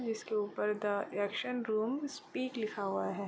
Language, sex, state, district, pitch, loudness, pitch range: Hindi, female, Chhattisgarh, Korba, 215 Hz, -36 LUFS, 205-245 Hz